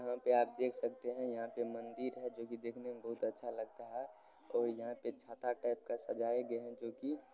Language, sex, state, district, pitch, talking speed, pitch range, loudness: Hindi, male, Bihar, Supaul, 120 Hz, 230 wpm, 115-125 Hz, -40 LUFS